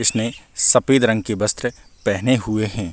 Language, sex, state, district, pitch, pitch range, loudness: Hindi, male, Chhattisgarh, Bastar, 115 Hz, 110-125 Hz, -19 LUFS